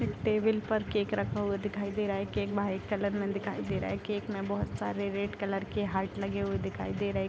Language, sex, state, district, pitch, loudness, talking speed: Hindi, female, Bihar, Darbhanga, 200 Hz, -33 LUFS, 265 wpm